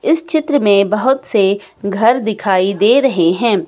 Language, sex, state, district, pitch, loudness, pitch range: Hindi, female, Himachal Pradesh, Shimla, 210 Hz, -14 LUFS, 200-265 Hz